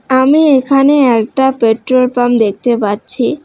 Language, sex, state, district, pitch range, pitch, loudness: Bengali, female, West Bengal, Alipurduar, 230-265 Hz, 255 Hz, -11 LUFS